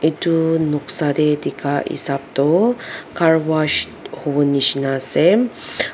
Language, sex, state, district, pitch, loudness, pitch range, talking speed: Nagamese, female, Nagaland, Dimapur, 150 Hz, -18 LUFS, 140-160 Hz, 110 wpm